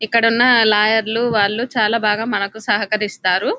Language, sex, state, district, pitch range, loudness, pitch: Telugu, female, Telangana, Nalgonda, 210-230 Hz, -16 LUFS, 220 Hz